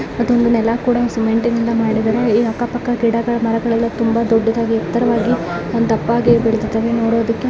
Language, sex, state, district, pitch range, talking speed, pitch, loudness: Kannada, female, Karnataka, Mysore, 225-235 Hz, 160 wpm, 230 Hz, -16 LUFS